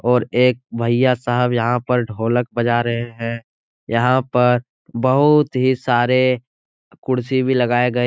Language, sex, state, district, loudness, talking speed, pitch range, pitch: Hindi, male, Bihar, Araria, -18 LUFS, 150 wpm, 120-130 Hz, 125 Hz